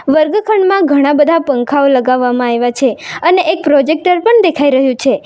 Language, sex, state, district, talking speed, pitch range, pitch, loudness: Gujarati, female, Gujarat, Valsad, 160 wpm, 265-340 Hz, 290 Hz, -11 LUFS